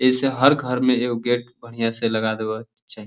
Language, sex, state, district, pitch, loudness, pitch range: Bhojpuri, male, Uttar Pradesh, Deoria, 120 Hz, -21 LUFS, 110-125 Hz